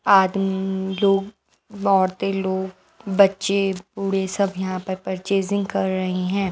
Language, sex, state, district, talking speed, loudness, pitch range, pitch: Hindi, female, Bihar, West Champaran, 120 wpm, -22 LUFS, 190-195 Hz, 195 Hz